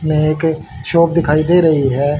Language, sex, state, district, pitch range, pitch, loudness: Hindi, male, Haryana, Rohtak, 150-165 Hz, 155 Hz, -14 LUFS